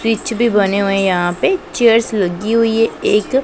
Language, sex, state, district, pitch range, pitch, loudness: Hindi, female, Punjab, Pathankot, 200-230 Hz, 225 Hz, -15 LUFS